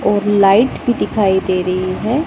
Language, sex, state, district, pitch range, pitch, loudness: Hindi, female, Punjab, Pathankot, 185-220 Hz, 205 Hz, -15 LUFS